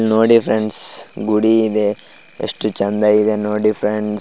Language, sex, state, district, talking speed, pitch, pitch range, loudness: Kannada, male, Karnataka, Raichur, 100 wpm, 105 Hz, 105-110 Hz, -17 LUFS